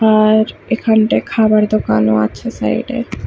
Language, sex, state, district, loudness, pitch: Bengali, female, West Bengal, Kolkata, -14 LUFS, 215 Hz